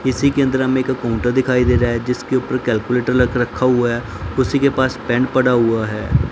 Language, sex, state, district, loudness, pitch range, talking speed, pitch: Hindi, male, Punjab, Pathankot, -17 LUFS, 120-130 Hz, 220 wpm, 125 Hz